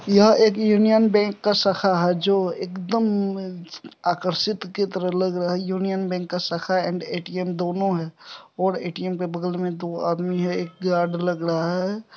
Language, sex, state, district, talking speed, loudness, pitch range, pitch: Hindi, male, Bihar, Supaul, 180 wpm, -22 LUFS, 175-195 Hz, 185 Hz